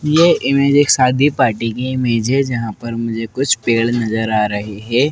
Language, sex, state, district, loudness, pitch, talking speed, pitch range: Hindi, male, Madhya Pradesh, Dhar, -16 LUFS, 120 Hz, 185 wpm, 115-135 Hz